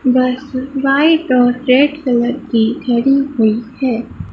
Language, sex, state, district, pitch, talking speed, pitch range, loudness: Hindi, female, Madhya Pradesh, Dhar, 255 Hz, 125 wpm, 240-275 Hz, -14 LUFS